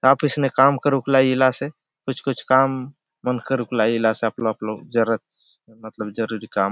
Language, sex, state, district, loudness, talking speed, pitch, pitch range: Halbi, male, Chhattisgarh, Bastar, -21 LUFS, 215 wpm, 125 Hz, 110-135 Hz